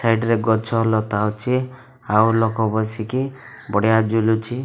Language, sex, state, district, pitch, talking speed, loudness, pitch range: Odia, male, Odisha, Malkangiri, 110 Hz, 130 wpm, -20 LUFS, 110-120 Hz